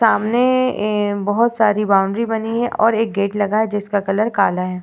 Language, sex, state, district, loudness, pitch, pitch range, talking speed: Hindi, female, Uttar Pradesh, Varanasi, -17 LUFS, 210 Hz, 200-230 Hz, 185 wpm